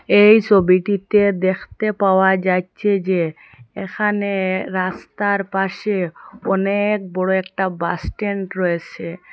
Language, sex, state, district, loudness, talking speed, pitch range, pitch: Bengali, female, Assam, Hailakandi, -18 LUFS, 95 wpm, 185-205 Hz, 190 Hz